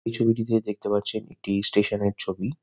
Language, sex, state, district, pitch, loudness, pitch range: Bengali, male, West Bengal, Kolkata, 105 Hz, -25 LUFS, 105-115 Hz